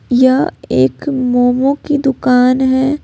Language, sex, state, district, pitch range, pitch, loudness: Hindi, female, Jharkhand, Ranchi, 250-275 Hz, 260 Hz, -13 LUFS